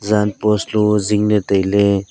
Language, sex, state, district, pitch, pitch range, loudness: Wancho, male, Arunachal Pradesh, Longding, 105 Hz, 100-105 Hz, -16 LUFS